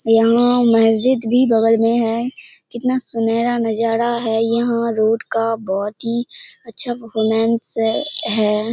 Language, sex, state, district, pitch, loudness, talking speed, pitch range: Hindi, female, Bihar, Purnia, 230 Hz, -17 LUFS, 125 wpm, 225-240 Hz